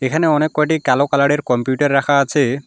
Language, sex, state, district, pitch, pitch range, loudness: Bengali, male, West Bengal, Alipurduar, 140 Hz, 135-150 Hz, -16 LUFS